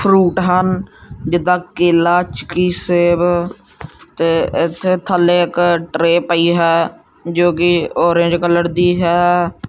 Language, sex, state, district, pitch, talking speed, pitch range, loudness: Punjabi, male, Punjab, Kapurthala, 175 Hz, 120 wpm, 170-180 Hz, -14 LUFS